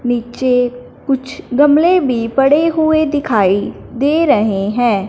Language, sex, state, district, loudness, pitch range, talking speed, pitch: Hindi, male, Punjab, Fazilka, -14 LUFS, 235-295 Hz, 120 wpm, 260 Hz